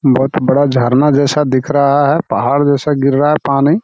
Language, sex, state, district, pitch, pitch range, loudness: Hindi, male, Bihar, Jamui, 140 Hz, 135-145 Hz, -12 LUFS